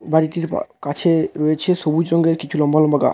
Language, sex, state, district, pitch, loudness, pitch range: Bengali, male, West Bengal, Dakshin Dinajpur, 160 Hz, -18 LUFS, 150-165 Hz